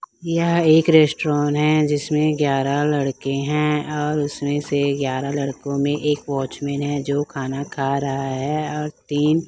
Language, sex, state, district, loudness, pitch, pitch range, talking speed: Hindi, female, Chhattisgarh, Raipur, -20 LUFS, 145 Hz, 140-150 Hz, 150 wpm